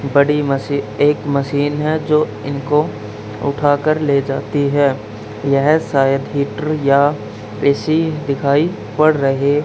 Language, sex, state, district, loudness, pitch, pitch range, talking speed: Hindi, male, Haryana, Charkhi Dadri, -16 LUFS, 140 Hz, 135-150 Hz, 125 wpm